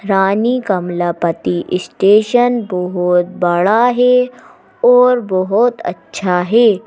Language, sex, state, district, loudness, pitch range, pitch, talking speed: Hindi, female, Madhya Pradesh, Bhopal, -14 LUFS, 180-245 Hz, 200 Hz, 85 wpm